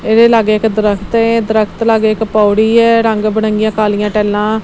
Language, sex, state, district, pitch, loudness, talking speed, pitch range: Punjabi, female, Punjab, Kapurthala, 220 Hz, -12 LUFS, 195 wpm, 215-225 Hz